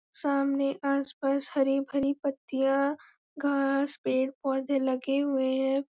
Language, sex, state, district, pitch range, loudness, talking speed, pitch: Hindi, female, Chhattisgarh, Bastar, 270-280 Hz, -29 LUFS, 100 wpm, 275 Hz